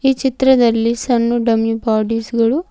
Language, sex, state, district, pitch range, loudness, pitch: Kannada, female, Karnataka, Bidar, 225-260 Hz, -15 LUFS, 235 Hz